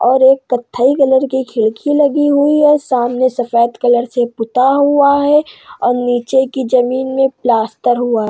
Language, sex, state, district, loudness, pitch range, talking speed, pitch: Hindi, female, Uttar Pradesh, Hamirpur, -13 LUFS, 245-275 Hz, 175 wpm, 255 Hz